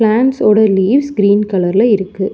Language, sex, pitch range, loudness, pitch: Tamil, female, 195-220 Hz, -12 LUFS, 210 Hz